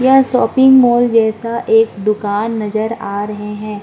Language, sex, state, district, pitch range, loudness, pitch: Hindi, female, Uttar Pradesh, Muzaffarnagar, 210-240 Hz, -14 LUFS, 225 Hz